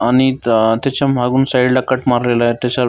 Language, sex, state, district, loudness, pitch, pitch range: Marathi, male, Maharashtra, Dhule, -15 LUFS, 125 Hz, 120-130 Hz